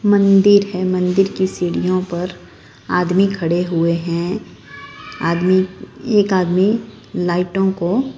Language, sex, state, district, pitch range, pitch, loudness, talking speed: Hindi, female, Punjab, Fazilka, 175-195 Hz, 185 Hz, -17 LUFS, 110 wpm